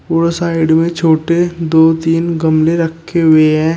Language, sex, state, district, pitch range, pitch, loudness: Hindi, male, Uttar Pradesh, Shamli, 160-170 Hz, 165 Hz, -12 LUFS